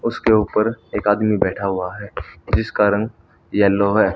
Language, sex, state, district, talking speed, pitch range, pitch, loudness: Hindi, male, Haryana, Rohtak, 160 wpm, 100-110 Hz, 105 Hz, -19 LUFS